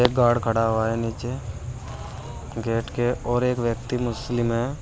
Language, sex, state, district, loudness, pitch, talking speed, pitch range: Hindi, male, Uttar Pradesh, Saharanpur, -25 LUFS, 120 Hz, 150 wpm, 115-125 Hz